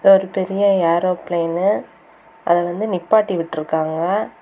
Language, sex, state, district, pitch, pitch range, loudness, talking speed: Tamil, female, Tamil Nadu, Kanyakumari, 180 Hz, 170-195 Hz, -18 LUFS, 95 wpm